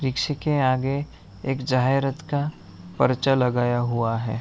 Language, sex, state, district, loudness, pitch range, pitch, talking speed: Hindi, male, Bihar, Araria, -23 LUFS, 120-140 Hz, 130 Hz, 135 wpm